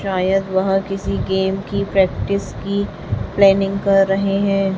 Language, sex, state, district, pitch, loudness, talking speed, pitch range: Hindi, female, Chhattisgarh, Raipur, 195 Hz, -18 LUFS, 140 wpm, 190-195 Hz